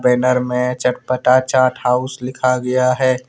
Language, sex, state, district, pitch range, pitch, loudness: Hindi, male, Jharkhand, Ranchi, 125-130 Hz, 125 Hz, -16 LUFS